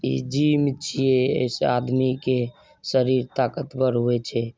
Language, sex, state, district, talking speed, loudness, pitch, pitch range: Angika, male, Bihar, Bhagalpur, 130 wpm, -23 LUFS, 130 Hz, 120-135 Hz